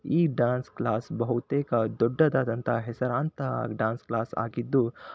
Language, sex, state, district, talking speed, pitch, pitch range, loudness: Kannada, male, Karnataka, Shimoga, 105 wpm, 120 Hz, 115-135 Hz, -28 LUFS